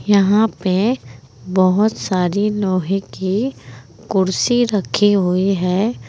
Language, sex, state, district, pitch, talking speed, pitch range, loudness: Hindi, female, Uttar Pradesh, Saharanpur, 195 Hz, 100 wpm, 185-210 Hz, -17 LUFS